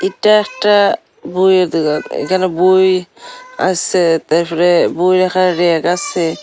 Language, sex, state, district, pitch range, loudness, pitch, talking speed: Bengali, female, Tripura, Unakoti, 175-195 Hz, -13 LUFS, 185 Hz, 110 wpm